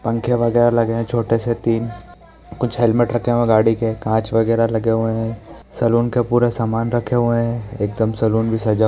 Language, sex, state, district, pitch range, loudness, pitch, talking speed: Hindi, male, Bihar, East Champaran, 115-120 Hz, -18 LUFS, 115 Hz, 215 wpm